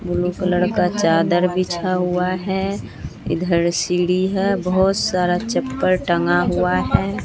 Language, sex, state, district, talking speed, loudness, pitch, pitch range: Hindi, female, Bihar, Katihar, 130 wpm, -19 LUFS, 180 Hz, 175-185 Hz